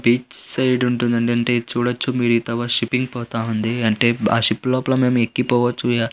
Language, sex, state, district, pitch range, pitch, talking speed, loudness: Telugu, male, Andhra Pradesh, Anantapur, 115-125 Hz, 120 Hz, 195 wpm, -19 LUFS